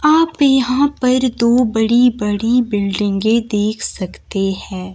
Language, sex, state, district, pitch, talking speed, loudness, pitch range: Hindi, female, Himachal Pradesh, Shimla, 230 Hz, 120 wpm, -16 LUFS, 205-255 Hz